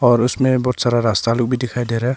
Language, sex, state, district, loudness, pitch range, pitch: Hindi, male, Arunachal Pradesh, Longding, -18 LUFS, 120-125 Hz, 120 Hz